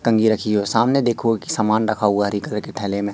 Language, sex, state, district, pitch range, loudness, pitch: Hindi, female, Madhya Pradesh, Katni, 100-115 Hz, -19 LUFS, 110 Hz